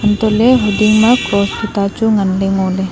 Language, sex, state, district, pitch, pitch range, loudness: Wancho, female, Arunachal Pradesh, Longding, 210 Hz, 195-220 Hz, -13 LUFS